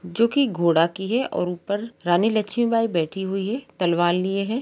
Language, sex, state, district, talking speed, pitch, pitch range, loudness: Hindi, female, Uttar Pradesh, Jalaun, 195 wpm, 195 Hz, 175-230 Hz, -22 LUFS